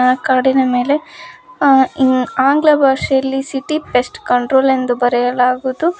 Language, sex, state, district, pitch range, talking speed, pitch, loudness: Kannada, female, Karnataka, Koppal, 255-285 Hz, 110 wpm, 265 Hz, -14 LUFS